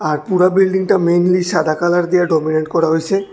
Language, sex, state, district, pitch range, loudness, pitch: Bengali, male, Tripura, West Tripura, 160-185 Hz, -15 LUFS, 175 Hz